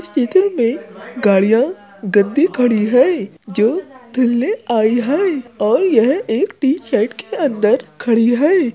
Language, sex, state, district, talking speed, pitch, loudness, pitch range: Hindi, female, Uttar Pradesh, Jyotiba Phule Nagar, 130 wpm, 245 Hz, -16 LUFS, 220-300 Hz